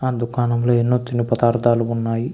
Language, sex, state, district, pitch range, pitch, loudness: Telugu, male, Andhra Pradesh, Krishna, 115-120 Hz, 120 Hz, -19 LUFS